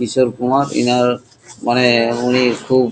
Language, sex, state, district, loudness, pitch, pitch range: Bengali, male, West Bengal, Kolkata, -16 LUFS, 125 Hz, 120-130 Hz